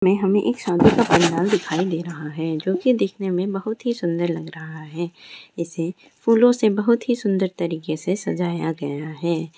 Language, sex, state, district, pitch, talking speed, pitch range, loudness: Hindi, female, Bihar, Sitamarhi, 175 Hz, 195 wpm, 165-205 Hz, -21 LUFS